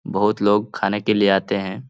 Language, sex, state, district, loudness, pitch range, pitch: Hindi, male, Bihar, Lakhisarai, -19 LUFS, 95-105 Hz, 100 Hz